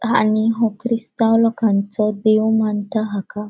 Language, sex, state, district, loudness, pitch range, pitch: Konkani, female, Goa, North and South Goa, -18 LUFS, 210-230 Hz, 220 Hz